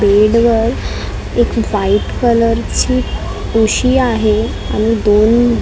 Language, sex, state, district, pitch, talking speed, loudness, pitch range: Marathi, female, Maharashtra, Mumbai Suburban, 225 Hz, 105 wpm, -14 LUFS, 215-240 Hz